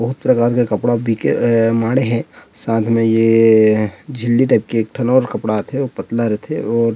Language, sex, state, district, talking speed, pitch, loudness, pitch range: Chhattisgarhi, male, Chhattisgarh, Rajnandgaon, 225 wpm, 115 Hz, -16 LUFS, 115-120 Hz